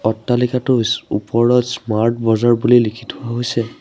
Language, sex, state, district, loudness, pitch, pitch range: Assamese, male, Assam, Sonitpur, -16 LUFS, 120 Hz, 115-125 Hz